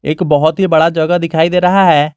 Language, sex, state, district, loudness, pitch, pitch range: Hindi, male, Jharkhand, Garhwa, -11 LUFS, 165 Hz, 155-180 Hz